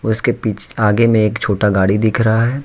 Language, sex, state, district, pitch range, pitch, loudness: Hindi, male, Jharkhand, Deoghar, 105-115 Hz, 110 Hz, -15 LUFS